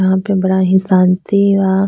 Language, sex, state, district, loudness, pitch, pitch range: Bajjika, female, Bihar, Vaishali, -13 LUFS, 190 Hz, 185-195 Hz